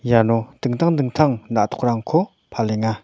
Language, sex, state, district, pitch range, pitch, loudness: Garo, male, Meghalaya, North Garo Hills, 115-145 Hz, 120 Hz, -20 LUFS